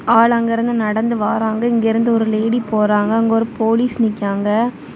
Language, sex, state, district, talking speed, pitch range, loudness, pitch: Tamil, female, Tamil Nadu, Kanyakumari, 170 wpm, 215-230 Hz, -16 LUFS, 225 Hz